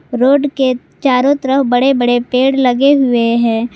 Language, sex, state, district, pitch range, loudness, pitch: Hindi, female, Jharkhand, Garhwa, 245-270 Hz, -12 LUFS, 255 Hz